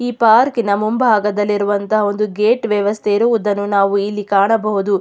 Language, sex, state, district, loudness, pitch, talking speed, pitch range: Kannada, female, Karnataka, Mysore, -15 LUFS, 210 Hz, 130 wpm, 205-220 Hz